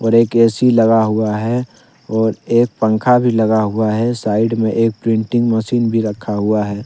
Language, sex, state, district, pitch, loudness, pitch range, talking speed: Hindi, male, Jharkhand, Deoghar, 115 Hz, -15 LUFS, 110-115 Hz, 190 wpm